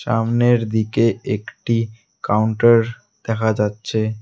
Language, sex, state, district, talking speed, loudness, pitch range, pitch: Bengali, male, West Bengal, Alipurduar, 85 wpm, -19 LUFS, 105-115 Hz, 110 Hz